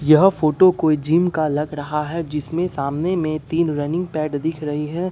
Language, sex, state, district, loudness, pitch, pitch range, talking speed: Hindi, male, Bihar, Katihar, -20 LUFS, 155 Hz, 150-170 Hz, 200 wpm